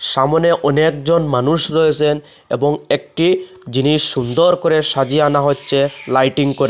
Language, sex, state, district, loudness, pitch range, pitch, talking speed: Bengali, male, Assam, Hailakandi, -15 LUFS, 140-160 Hz, 150 Hz, 125 wpm